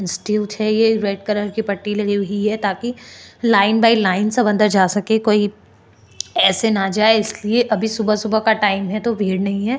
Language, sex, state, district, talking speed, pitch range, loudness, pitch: Hindi, female, Uttarakhand, Tehri Garhwal, 195 wpm, 200-220 Hz, -17 LUFS, 210 Hz